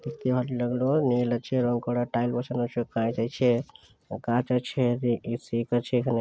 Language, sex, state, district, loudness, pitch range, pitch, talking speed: Bengali, male, West Bengal, Malda, -27 LUFS, 120-125 Hz, 120 Hz, 185 wpm